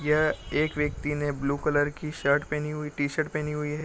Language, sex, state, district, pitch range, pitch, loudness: Hindi, male, Bihar, Gopalganj, 145-150 Hz, 150 Hz, -28 LUFS